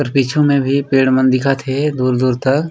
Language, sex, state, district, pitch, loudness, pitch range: Chhattisgarhi, male, Chhattisgarh, Raigarh, 135 Hz, -15 LUFS, 130-140 Hz